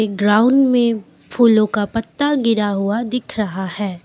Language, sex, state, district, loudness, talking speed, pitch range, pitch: Hindi, female, Assam, Kamrup Metropolitan, -17 LUFS, 150 wpm, 205-240 Hz, 215 Hz